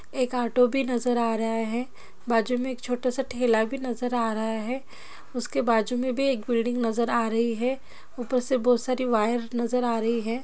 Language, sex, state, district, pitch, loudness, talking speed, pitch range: Hindi, female, Bihar, Jahanabad, 245 Hz, -26 LUFS, 215 wpm, 230-250 Hz